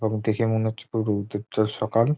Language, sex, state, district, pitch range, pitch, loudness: Bengali, male, West Bengal, Jhargram, 110-115 Hz, 110 Hz, -25 LUFS